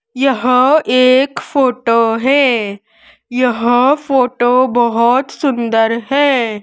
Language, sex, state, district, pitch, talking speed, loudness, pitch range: Hindi, male, Madhya Pradesh, Dhar, 250 Hz, 80 wpm, -13 LUFS, 230-270 Hz